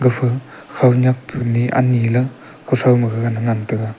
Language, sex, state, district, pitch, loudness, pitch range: Wancho, male, Arunachal Pradesh, Longding, 125 Hz, -17 LUFS, 115-130 Hz